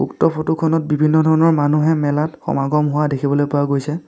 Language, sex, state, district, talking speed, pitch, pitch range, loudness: Assamese, male, Assam, Sonitpur, 175 wpm, 150 Hz, 145-160 Hz, -17 LUFS